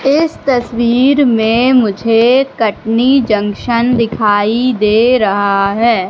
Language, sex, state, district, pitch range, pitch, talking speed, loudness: Hindi, female, Madhya Pradesh, Katni, 215-250 Hz, 235 Hz, 100 wpm, -12 LUFS